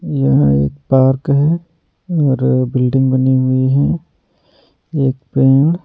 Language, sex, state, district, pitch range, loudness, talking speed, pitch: Hindi, male, Delhi, New Delhi, 130-145 Hz, -14 LUFS, 115 wpm, 135 Hz